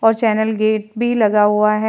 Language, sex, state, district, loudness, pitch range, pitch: Hindi, female, Uttar Pradesh, Jalaun, -16 LUFS, 210-225 Hz, 215 Hz